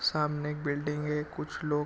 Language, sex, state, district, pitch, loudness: Hindi, male, Chhattisgarh, Korba, 150 Hz, -33 LUFS